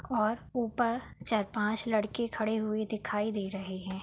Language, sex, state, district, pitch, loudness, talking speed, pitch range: Hindi, female, Uttar Pradesh, Budaun, 215 Hz, -32 LUFS, 150 wpm, 210-230 Hz